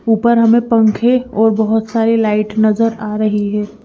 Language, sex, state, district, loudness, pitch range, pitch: Hindi, female, Punjab, Fazilka, -14 LUFS, 215-230 Hz, 220 Hz